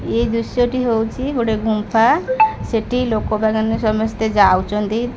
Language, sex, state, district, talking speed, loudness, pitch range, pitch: Odia, female, Odisha, Khordha, 115 wpm, -17 LUFS, 220-240 Hz, 225 Hz